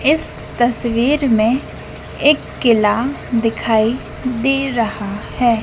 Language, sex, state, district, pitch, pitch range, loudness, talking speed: Hindi, female, Madhya Pradesh, Dhar, 235 Hz, 225-265 Hz, -17 LUFS, 95 wpm